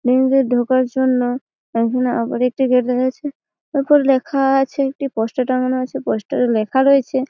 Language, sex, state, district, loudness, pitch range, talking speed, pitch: Bengali, female, West Bengal, Malda, -17 LUFS, 250-270 Hz, 165 wpm, 260 Hz